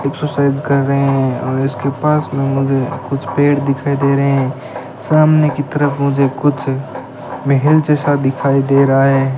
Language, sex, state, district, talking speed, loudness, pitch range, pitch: Hindi, male, Rajasthan, Bikaner, 165 wpm, -15 LUFS, 135-145 Hz, 140 Hz